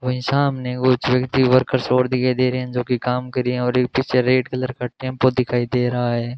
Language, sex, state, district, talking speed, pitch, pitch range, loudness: Hindi, male, Rajasthan, Bikaner, 245 wpm, 125 Hz, 125-130 Hz, -19 LUFS